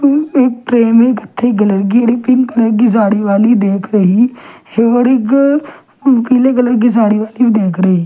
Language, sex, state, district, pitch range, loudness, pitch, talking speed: Hindi, female, Delhi, New Delhi, 215-255 Hz, -11 LUFS, 235 Hz, 170 wpm